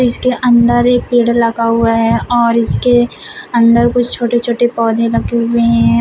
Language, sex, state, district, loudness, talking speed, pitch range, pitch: Hindi, female, Uttar Pradesh, Shamli, -12 LUFS, 170 wpm, 230-245 Hz, 235 Hz